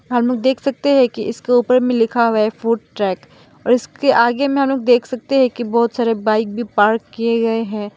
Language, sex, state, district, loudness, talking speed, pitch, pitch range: Hindi, female, Mizoram, Aizawl, -17 LUFS, 235 wpm, 235 Hz, 225-250 Hz